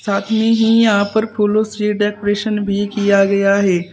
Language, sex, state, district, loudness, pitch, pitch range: Hindi, female, Uttar Pradesh, Saharanpur, -15 LUFS, 205 Hz, 200-215 Hz